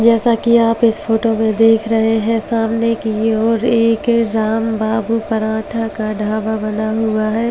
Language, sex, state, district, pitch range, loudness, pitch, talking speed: Hindi, female, Delhi, New Delhi, 220-230 Hz, -16 LUFS, 225 Hz, 160 wpm